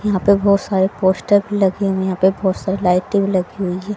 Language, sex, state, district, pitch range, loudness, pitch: Hindi, female, Haryana, Rohtak, 190-200 Hz, -17 LUFS, 195 Hz